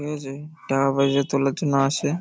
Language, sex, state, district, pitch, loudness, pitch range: Bengali, male, West Bengal, Paschim Medinipur, 140 Hz, -22 LUFS, 135-150 Hz